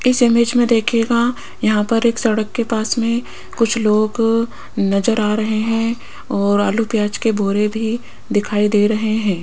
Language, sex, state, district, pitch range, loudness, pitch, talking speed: Hindi, female, Rajasthan, Jaipur, 210-230 Hz, -17 LUFS, 220 Hz, 170 wpm